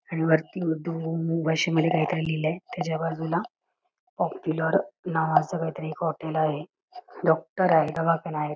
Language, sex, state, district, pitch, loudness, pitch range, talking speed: Marathi, female, Karnataka, Belgaum, 165 Hz, -26 LUFS, 160-180 Hz, 110 wpm